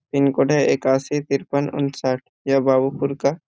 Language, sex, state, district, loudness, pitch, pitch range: Hindi, male, Jharkhand, Jamtara, -20 LUFS, 140 Hz, 135-140 Hz